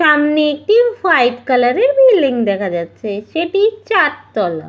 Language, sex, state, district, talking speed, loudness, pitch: Bengali, female, West Bengal, Malda, 130 wpm, -14 LUFS, 300 Hz